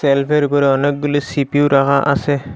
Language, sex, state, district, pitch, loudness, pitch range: Bengali, male, Assam, Hailakandi, 140 Hz, -15 LUFS, 140-145 Hz